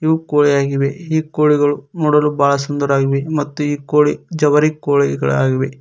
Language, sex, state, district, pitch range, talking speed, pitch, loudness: Kannada, male, Karnataka, Koppal, 140-150 Hz, 125 wpm, 145 Hz, -16 LUFS